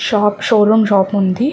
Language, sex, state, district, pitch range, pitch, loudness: Telugu, female, Andhra Pradesh, Chittoor, 200-220 Hz, 210 Hz, -13 LUFS